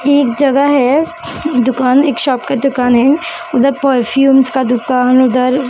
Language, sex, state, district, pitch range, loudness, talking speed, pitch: Hindi, female, Maharashtra, Mumbai Suburban, 255-280 Hz, -12 LUFS, 155 wpm, 265 Hz